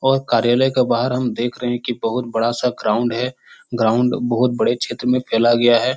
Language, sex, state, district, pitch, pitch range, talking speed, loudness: Hindi, male, Bihar, Supaul, 120 Hz, 120-125 Hz, 210 wpm, -18 LUFS